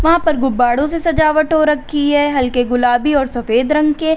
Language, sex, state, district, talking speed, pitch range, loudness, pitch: Hindi, female, Uttar Pradesh, Lalitpur, 200 wpm, 250-310 Hz, -14 LUFS, 290 Hz